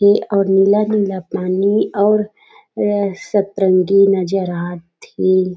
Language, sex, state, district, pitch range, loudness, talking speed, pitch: Chhattisgarhi, female, Chhattisgarh, Raigarh, 185-205 Hz, -16 LUFS, 95 wpm, 195 Hz